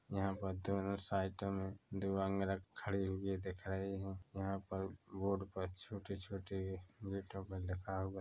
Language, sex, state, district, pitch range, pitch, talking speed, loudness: Hindi, male, Chhattisgarh, Korba, 95-100 Hz, 95 Hz, 155 wpm, -43 LUFS